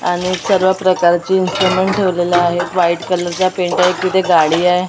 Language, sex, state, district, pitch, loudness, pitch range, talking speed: Marathi, female, Maharashtra, Gondia, 180 Hz, -14 LUFS, 175-185 Hz, 170 wpm